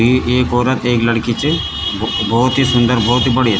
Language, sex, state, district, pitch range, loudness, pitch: Garhwali, male, Uttarakhand, Tehri Garhwal, 115-125 Hz, -14 LUFS, 120 Hz